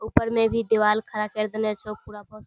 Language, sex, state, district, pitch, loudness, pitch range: Hindi, female, Bihar, Kishanganj, 215 Hz, -24 LUFS, 210-220 Hz